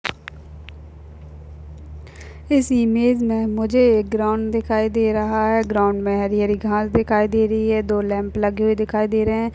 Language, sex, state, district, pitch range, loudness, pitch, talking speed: Hindi, female, Rajasthan, Churu, 155-220 Hz, -19 LUFS, 215 Hz, 170 wpm